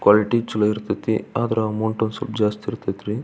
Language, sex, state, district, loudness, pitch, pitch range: Kannada, male, Karnataka, Belgaum, -22 LUFS, 110 Hz, 105-110 Hz